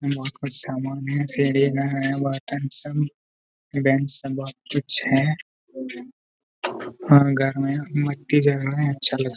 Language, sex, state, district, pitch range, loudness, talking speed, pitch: Hindi, male, Jharkhand, Jamtara, 135-140 Hz, -23 LUFS, 140 wpm, 140 Hz